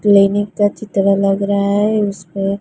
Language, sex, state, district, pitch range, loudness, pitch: Hindi, female, Gujarat, Gandhinagar, 195-205 Hz, -16 LUFS, 200 Hz